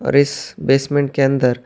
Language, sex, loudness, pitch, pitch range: Urdu, male, -17 LUFS, 135 Hz, 135-140 Hz